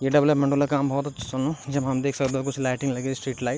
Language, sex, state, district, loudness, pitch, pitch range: Garhwali, male, Uttarakhand, Tehri Garhwal, -25 LUFS, 135 Hz, 130-140 Hz